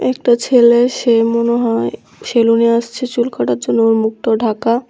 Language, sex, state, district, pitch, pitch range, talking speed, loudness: Bengali, female, Tripura, West Tripura, 235 Hz, 225-240 Hz, 160 wpm, -14 LUFS